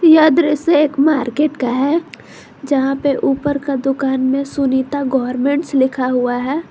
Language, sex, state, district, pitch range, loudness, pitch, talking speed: Hindi, female, Jharkhand, Garhwa, 265-295 Hz, -16 LUFS, 275 Hz, 150 wpm